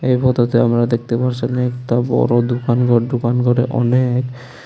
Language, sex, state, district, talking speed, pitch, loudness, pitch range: Bengali, male, Tripura, West Tripura, 155 wpm, 120 Hz, -16 LUFS, 120-125 Hz